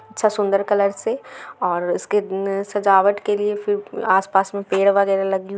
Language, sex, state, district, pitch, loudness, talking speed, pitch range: Hindi, female, Bihar, Gaya, 200 Hz, -20 LUFS, 170 wpm, 195-205 Hz